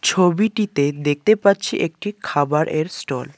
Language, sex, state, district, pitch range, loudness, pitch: Bengali, male, West Bengal, Alipurduar, 145-205 Hz, -19 LUFS, 170 Hz